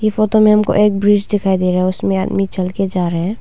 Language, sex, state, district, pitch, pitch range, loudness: Hindi, female, Arunachal Pradesh, Longding, 195 Hz, 185-210 Hz, -15 LUFS